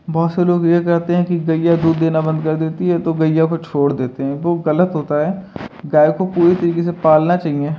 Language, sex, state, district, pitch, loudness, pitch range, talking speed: Hindi, male, Bihar, Purnia, 165 Hz, -16 LUFS, 155-175 Hz, 240 wpm